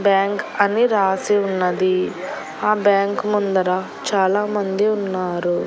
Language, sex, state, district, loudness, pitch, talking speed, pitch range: Telugu, female, Andhra Pradesh, Annamaya, -19 LUFS, 200 Hz, 95 wpm, 185-210 Hz